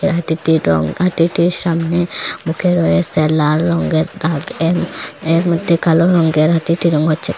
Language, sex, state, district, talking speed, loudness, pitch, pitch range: Bengali, female, Assam, Hailakandi, 140 wpm, -15 LUFS, 165 Hz, 160-170 Hz